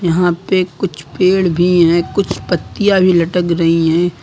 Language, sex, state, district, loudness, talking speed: Hindi, male, Uttar Pradesh, Lucknow, -14 LUFS, 170 wpm